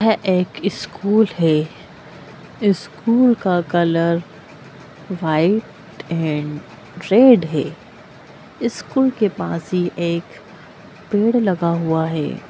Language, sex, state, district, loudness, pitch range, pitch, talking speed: Hindi, female, Bihar, Gopalganj, -18 LUFS, 160-210 Hz, 175 Hz, 95 wpm